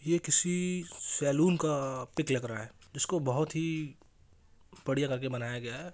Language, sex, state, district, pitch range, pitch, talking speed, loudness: Hindi, male, Bihar, East Champaran, 130-170 Hz, 145 Hz, 160 wpm, -31 LUFS